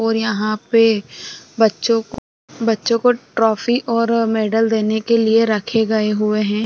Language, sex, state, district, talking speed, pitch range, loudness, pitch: Hindi, female, Bihar, Sitamarhi, 155 wpm, 215-230 Hz, -17 LUFS, 225 Hz